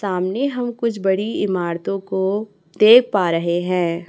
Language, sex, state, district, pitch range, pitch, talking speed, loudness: Hindi, female, Chhattisgarh, Raipur, 175-215 Hz, 190 Hz, 145 wpm, -19 LUFS